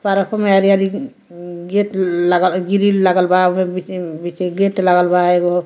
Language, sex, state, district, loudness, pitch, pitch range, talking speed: Bhojpuri, female, Bihar, Muzaffarpur, -15 LUFS, 185 Hz, 180-195 Hz, 180 wpm